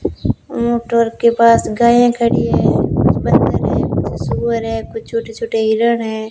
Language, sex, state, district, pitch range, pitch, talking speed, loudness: Hindi, female, Rajasthan, Bikaner, 225-235 Hz, 230 Hz, 150 wpm, -15 LUFS